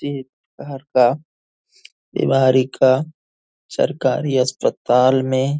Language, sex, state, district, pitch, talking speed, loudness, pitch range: Hindi, male, Bihar, Purnia, 130 Hz, 95 wpm, -18 LUFS, 130-140 Hz